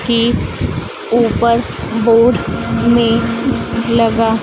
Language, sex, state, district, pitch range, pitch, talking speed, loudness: Hindi, female, Madhya Pradesh, Dhar, 230-235 Hz, 230 Hz, 70 wpm, -14 LUFS